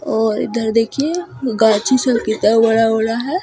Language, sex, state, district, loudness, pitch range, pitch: Maithili, female, Bihar, Supaul, -16 LUFS, 220-260 Hz, 225 Hz